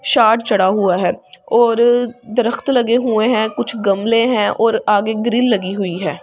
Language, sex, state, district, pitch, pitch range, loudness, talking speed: Hindi, female, Delhi, New Delhi, 225 Hz, 200-240 Hz, -15 LUFS, 185 wpm